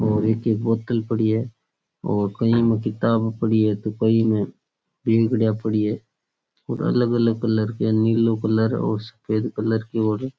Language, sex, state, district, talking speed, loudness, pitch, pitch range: Rajasthani, male, Rajasthan, Churu, 165 wpm, -22 LUFS, 110 Hz, 110-115 Hz